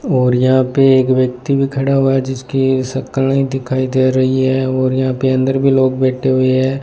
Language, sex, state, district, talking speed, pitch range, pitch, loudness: Hindi, male, Rajasthan, Bikaner, 220 wpm, 130-135 Hz, 130 Hz, -14 LUFS